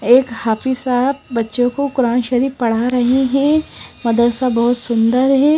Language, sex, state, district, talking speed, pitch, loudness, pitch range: Hindi, female, Himachal Pradesh, Shimla, 150 wpm, 250 Hz, -16 LUFS, 235-265 Hz